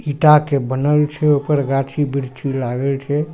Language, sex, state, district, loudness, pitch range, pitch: Maithili, male, Bihar, Supaul, -17 LUFS, 135-150 Hz, 145 Hz